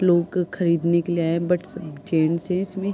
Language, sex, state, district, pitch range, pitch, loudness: Hindi, female, Uttar Pradesh, Deoria, 170-180 Hz, 170 Hz, -22 LUFS